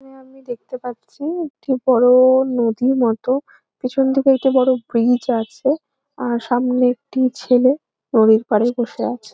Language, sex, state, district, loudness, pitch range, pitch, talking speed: Bengali, female, West Bengal, Jhargram, -17 LUFS, 245-270 Hz, 255 Hz, 130 wpm